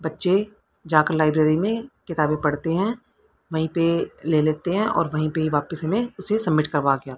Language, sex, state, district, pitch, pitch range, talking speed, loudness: Hindi, female, Haryana, Rohtak, 160 Hz, 155-195 Hz, 175 wpm, -22 LUFS